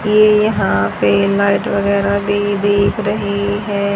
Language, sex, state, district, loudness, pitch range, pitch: Hindi, male, Haryana, Jhajjar, -15 LUFS, 200-205 Hz, 200 Hz